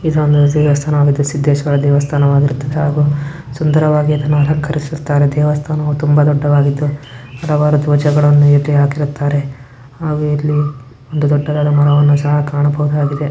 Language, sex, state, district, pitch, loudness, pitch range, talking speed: Kannada, male, Karnataka, Bijapur, 145 Hz, -13 LUFS, 145-150 Hz, 95 wpm